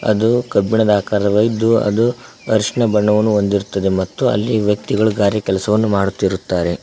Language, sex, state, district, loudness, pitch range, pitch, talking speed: Kannada, male, Karnataka, Koppal, -16 LUFS, 100-110 Hz, 105 Hz, 115 wpm